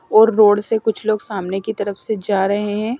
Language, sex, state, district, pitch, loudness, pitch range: Hindi, female, Maharashtra, Mumbai Suburban, 210 Hz, -18 LUFS, 205-220 Hz